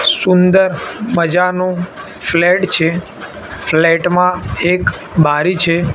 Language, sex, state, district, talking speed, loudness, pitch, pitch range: Gujarati, male, Gujarat, Gandhinagar, 90 wpm, -13 LUFS, 180 Hz, 170-185 Hz